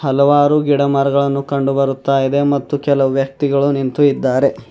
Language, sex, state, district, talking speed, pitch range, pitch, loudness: Kannada, male, Karnataka, Bidar, 115 wpm, 135-145 Hz, 140 Hz, -15 LUFS